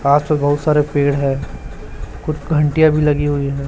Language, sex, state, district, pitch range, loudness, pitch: Hindi, male, Chhattisgarh, Raipur, 140-150 Hz, -16 LUFS, 145 Hz